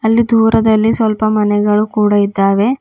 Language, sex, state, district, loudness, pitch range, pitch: Kannada, female, Karnataka, Bidar, -12 LUFS, 205-225 Hz, 215 Hz